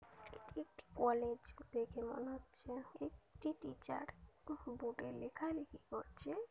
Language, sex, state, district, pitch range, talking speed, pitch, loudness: Bengali, female, West Bengal, Kolkata, 235-305 Hz, 110 wpm, 255 Hz, -46 LUFS